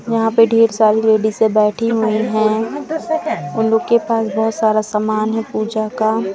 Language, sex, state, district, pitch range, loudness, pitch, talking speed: Hindi, female, Bihar, Gopalganj, 215-230 Hz, -16 LUFS, 220 Hz, 170 wpm